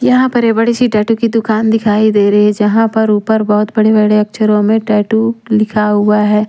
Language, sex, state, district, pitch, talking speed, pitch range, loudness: Hindi, female, Haryana, Rohtak, 215 Hz, 210 wpm, 210-225 Hz, -11 LUFS